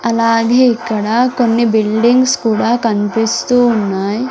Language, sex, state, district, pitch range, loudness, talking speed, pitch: Telugu, female, Andhra Pradesh, Sri Satya Sai, 220-240 Hz, -13 LUFS, 95 wpm, 230 Hz